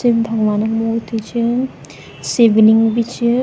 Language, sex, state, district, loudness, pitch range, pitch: Garhwali, female, Uttarakhand, Tehri Garhwal, -15 LUFS, 220-235 Hz, 230 Hz